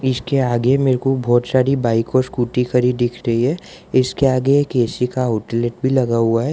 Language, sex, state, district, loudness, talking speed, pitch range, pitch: Hindi, male, Gujarat, Valsad, -18 LUFS, 210 wpm, 120-130 Hz, 125 Hz